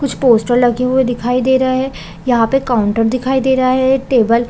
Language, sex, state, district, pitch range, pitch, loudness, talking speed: Hindi, female, Chhattisgarh, Balrampur, 240-260 Hz, 255 Hz, -14 LUFS, 240 wpm